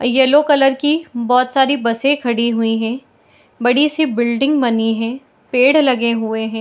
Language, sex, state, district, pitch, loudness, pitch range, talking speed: Hindi, female, Bihar, Madhepura, 250 Hz, -15 LUFS, 235-280 Hz, 165 wpm